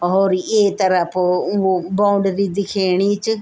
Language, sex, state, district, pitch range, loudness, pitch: Garhwali, female, Uttarakhand, Tehri Garhwal, 185-200 Hz, -17 LUFS, 195 Hz